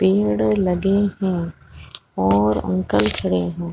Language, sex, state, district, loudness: Hindi, female, Chhattisgarh, Raigarh, -19 LUFS